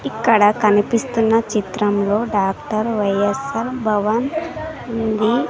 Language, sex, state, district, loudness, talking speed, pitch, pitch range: Telugu, female, Andhra Pradesh, Sri Satya Sai, -18 LUFS, 75 wpm, 220 Hz, 205-230 Hz